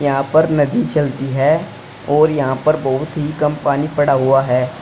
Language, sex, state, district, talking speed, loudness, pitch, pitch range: Hindi, male, Uttar Pradesh, Saharanpur, 185 wpm, -16 LUFS, 145 Hz, 135-150 Hz